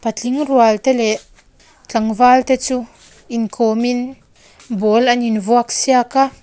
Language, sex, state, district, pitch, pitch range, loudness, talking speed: Mizo, female, Mizoram, Aizawl, 240 Hz, 225-255 Hz, -15 LUFS, 130 wpm